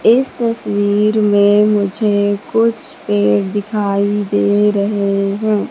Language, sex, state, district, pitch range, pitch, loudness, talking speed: Hindi, female, Madhya Pradesh, Katni, 200-215 Hz, 205 Hz, -15 LUFS, 105 wpm